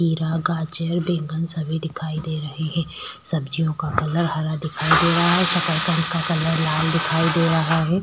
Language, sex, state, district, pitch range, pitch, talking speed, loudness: Hindi, female, Chhattisgarh, Sukma, 155-170 Hz, 165 Hz, 180 wpm, -21 LUFS